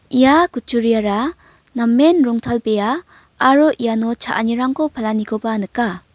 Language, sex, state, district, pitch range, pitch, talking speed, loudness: Garo, female, Meghalaya, North Garo Hills, 225-275 Hz, 235 Hz, 90 wpm, -17 LUFS